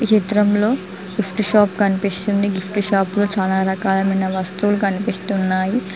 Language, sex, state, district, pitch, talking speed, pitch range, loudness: Telugu, female, Telangana, Mahabubabad, 200 Hz, 110 wpm, 190-210 Hz, -18 LUFS